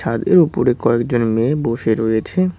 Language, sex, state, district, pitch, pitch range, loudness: Bengali, male, West Bengal, Cooch Behar, 120 Hz, 115-160 Hz, -16 LUFS